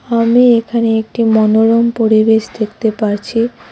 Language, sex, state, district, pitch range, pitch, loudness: Bengali, female, West Bengal, Cooch Behar, 220-230 Hz, 225 Hz, -12 LUFS